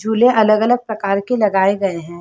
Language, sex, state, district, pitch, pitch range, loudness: Hindi, female, Chhattisgarh, Sarguja, 215 Hz, 195-225 Hz, -16 LUFS